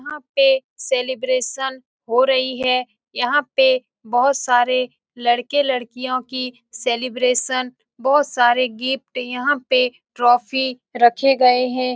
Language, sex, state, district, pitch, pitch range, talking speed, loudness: Hindi, female, Bihar, Saran, 255 Hz, 245-265 Hz, 125 wpm, -19 LUFS